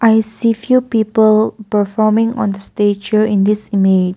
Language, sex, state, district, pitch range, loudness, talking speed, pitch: English, female, Nagaland, Kohima, 205-220 Hz, -14 LUFS, 175 wpm, 215 Hz